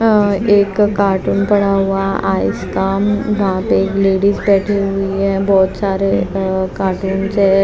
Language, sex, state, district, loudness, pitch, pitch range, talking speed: Hindi, female, Maharashtra, Mumbai Suburban, -15 LUFS, 195 Hz, 195-200 Hz, 120 wpm